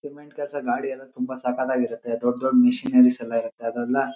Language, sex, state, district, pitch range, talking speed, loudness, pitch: Kannada, male, Karnataka, Shimoga, 120-145 Hz, 200 wpm, -23 LUFS, 130 Hz